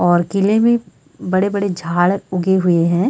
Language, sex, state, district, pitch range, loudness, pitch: Hindi, female, Chhattisgarh, Sarguja, 175-200 Hz, -16 LUFS, 185 Hz